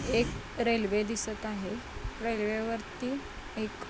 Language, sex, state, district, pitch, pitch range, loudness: Marathi, female, Maharashtra, Nagpur, 220 Hz, 215-230 Hz, -33 LUFS